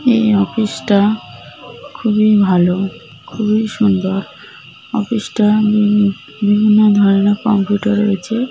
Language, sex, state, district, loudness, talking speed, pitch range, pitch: Bengali, female, West Bengal, North 24 Parganas, -14 LUFS, 105 wpm, 200-215 Hz, 210 Hz